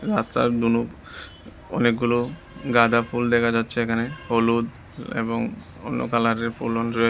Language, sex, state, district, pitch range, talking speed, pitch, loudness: Bengali, male, Tripura, West Tripura, 115-120 Hz, 110 wpm, 115 Hz, -23 LUFS